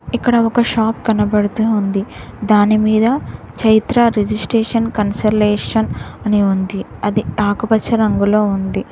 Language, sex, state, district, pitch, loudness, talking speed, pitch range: Telugu, female, Telangana, Mahabubabad, 215 Hz, -15 LUFS, 110 wpm, 205-225 Hz